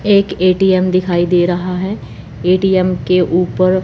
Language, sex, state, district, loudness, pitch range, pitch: Hindi, female, Chandigarh, Chandigarh, -14 LUFS, 180-185 Hz, 185 Hz